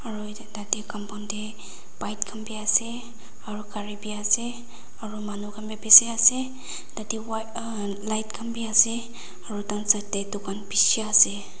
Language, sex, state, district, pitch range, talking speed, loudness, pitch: Nagamese, female, Nagaland, Dimapur, 210-225 Hz, 165 wpm, -23 LUFS, 215 Hz